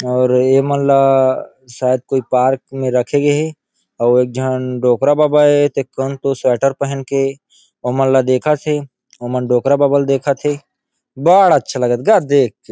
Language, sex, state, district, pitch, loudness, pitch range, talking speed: Chhattisgarhi, male, Chhattisgarh, Rajnandgaon, 135 Hz, -15 LUFS, 125-140 Hz, 185 wpm